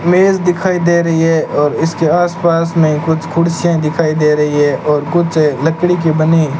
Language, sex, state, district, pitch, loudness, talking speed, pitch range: Hindi, male, Rajasthan, Bikaner, 165 Hz, -13 LUFS, 200 wpm, 155-170 Hz